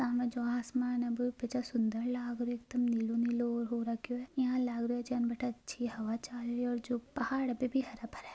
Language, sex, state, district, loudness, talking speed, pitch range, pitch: Hindi, female, Rajasthan, Nagaur, -35 LUFS, 200 wpm, 235-245 Hz, 245 Hz